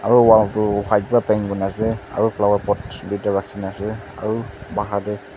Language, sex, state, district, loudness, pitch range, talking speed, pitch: Nagamese, male, Nagaland, Dimapur, -20 LUFS, 100-110 Hz, 190 wpm, 105 Hz